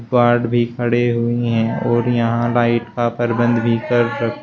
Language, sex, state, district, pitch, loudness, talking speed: Hindi, male, Uttar Pradesh, Shamli, 120 Hz, -17 LUFS, 160 wpm